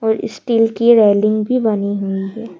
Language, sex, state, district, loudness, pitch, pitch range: Hindi, female, Madhya Pradesh, Bhopal, -15 LUFS, 220 Hz, 200-230 Hz